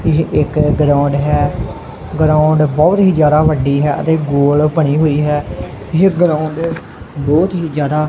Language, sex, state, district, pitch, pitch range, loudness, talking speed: Punjabi, male, Punjab, Kapurthala, 150 Hz, 145-160 Hz, -13 LUFS, 155 wpm